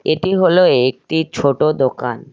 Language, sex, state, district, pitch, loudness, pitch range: Bengali, male, West Bengal, Cooch Behar, 155 Hz, -15 LUFS, 135-180 Hz